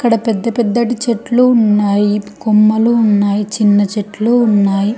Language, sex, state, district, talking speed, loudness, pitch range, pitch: Telugu, female, Telangana, Hyderabad, 110 wpm, -13 LUFS, 205-235 Hz, 215 Hz